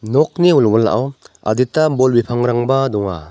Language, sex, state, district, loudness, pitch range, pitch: Garo, male, Meghalaya, North Garo Hills, -15 LUFS, 110-135 Hz, 120 Hz